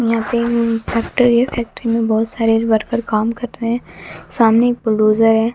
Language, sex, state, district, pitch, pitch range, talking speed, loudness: Hindi, female, Bihar, West Champaran, 230 Hz, 225-235 Hz, 195 wpm, -16 LUFS